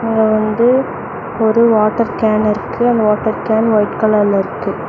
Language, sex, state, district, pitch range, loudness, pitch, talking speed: Tamil, female, Tamil Nadu, Namakkal, 215-225 Hz, -14 LUFS, 220 Hz, 145 wpm